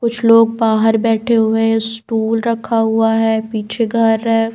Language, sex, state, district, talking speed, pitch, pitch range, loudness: Hindi, female, Bihar, Patna, 170 wpm, 225 Hz, 225-230 Hz, -15 LUFS